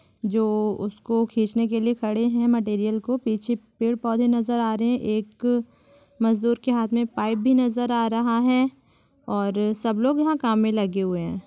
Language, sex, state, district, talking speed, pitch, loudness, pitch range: Hindi, female, Bihar, Supaul, 190 wpm, 230 Hz, -23 LUFS, 215-240 Hz